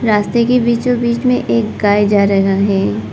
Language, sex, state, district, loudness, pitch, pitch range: Hindi, female, Arunachal Pradesh, Papum Pare, -14 LUFS, 205 Hz, 195-235 Hz